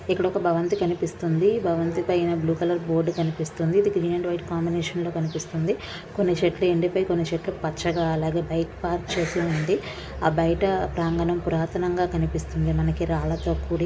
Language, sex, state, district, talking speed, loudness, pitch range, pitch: Telugu, female, Andhra Pradesh, Krishna, 155 wpm, -25 LUFS, 165-175 Hz, 170 Hz